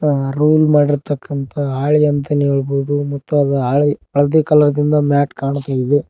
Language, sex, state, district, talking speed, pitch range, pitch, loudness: Kannada, male, Karnataka, Koppal, 140 wpm, 140-150 Hz, 145 Hz, -16 LUFS